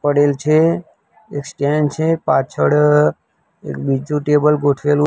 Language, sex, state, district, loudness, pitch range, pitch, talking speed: Gujarati, male, Gujarat, Gandhinagar, -16 LUFS, 140-150 Hz, 145 Hz, 120 wpm